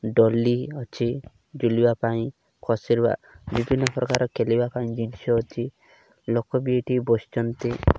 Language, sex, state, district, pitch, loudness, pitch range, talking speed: Odia, male, Odisha, Malkangiri, 120 Hz, -24 LUFS, 115-125 Hz, 110 wpm